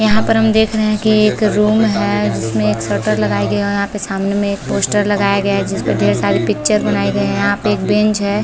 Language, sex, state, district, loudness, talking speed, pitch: Hindi, female, Chhattisgarh, Balrampur, -15 LUFS, 285 wpm, 200 Hz